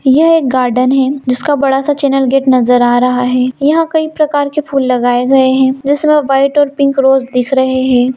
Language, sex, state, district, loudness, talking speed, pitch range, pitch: Hindi, female, Bihar, Gopalganj, -11 LUFS, 215 wpm, 255-285 Hz, 270 Hz